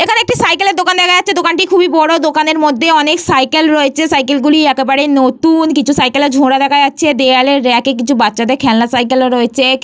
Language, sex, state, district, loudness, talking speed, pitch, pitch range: Bengali, female, West Bengal, Paschim Medinipur, -10 LUFS, 205 wpm, 285 Hz, 265-320 Hz